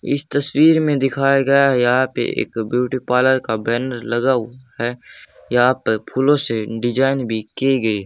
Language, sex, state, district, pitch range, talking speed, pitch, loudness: Hindi, male, Haryana, Jhajjar, 120-135 Hz, 165 wpm, 125 Hz, -18 LUFS